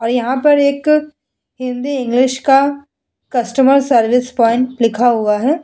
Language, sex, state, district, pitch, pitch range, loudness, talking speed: Hindi, female, Bihar, Vaishali, 255 Hz, 240-280 Hz, -14 LUFS, 150 wpm